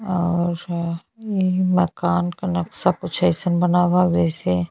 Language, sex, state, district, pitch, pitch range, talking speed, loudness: Bhojpuri, female, Uttar Pradesh, Ghazipur, 180 Hz, 175-180 Hz, 140 wpm, -21 LUFS